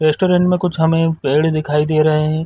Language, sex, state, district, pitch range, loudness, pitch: Hindi, male, Chhattisgarh, Sarguja, 155-165 Hz, -15 LUFS, 155 Hz